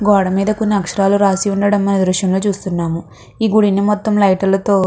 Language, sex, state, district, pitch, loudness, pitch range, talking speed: Telugu, female, Andhra Pradesh, Chittoor, 200 Hz, -15 LUFS, 190-205 Hz, 195 wpm